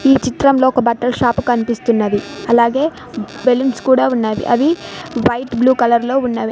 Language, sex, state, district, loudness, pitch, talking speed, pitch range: Telugu, female, Telangana, Mahabubabad, -15 LUFS, 245 Hz, 145 wpm, 235-265 Hz